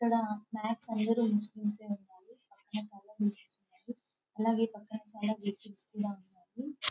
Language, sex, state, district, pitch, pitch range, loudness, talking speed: Telugu, female, Telangana, Karimnagar, 215 Hz, 210-230 Hz, -35 LUFS, 130 wpm